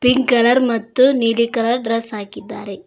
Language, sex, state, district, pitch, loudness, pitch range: Kannada, female, Karnataka, Koppal, 235 Hz, -16 LUFS, 230-250 Hz